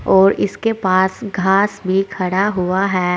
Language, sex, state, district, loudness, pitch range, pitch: Hindi, female, Uttar Pradesh, Saharanpur, -17 LUFS, 185-200 Hz, 190 Hz